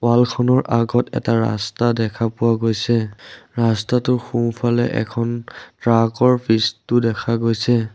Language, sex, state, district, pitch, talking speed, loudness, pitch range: Assamese, male, Assam, Sonitpur, 115 Hz, 120 wpm, -19 LUFS, 115-120 Hz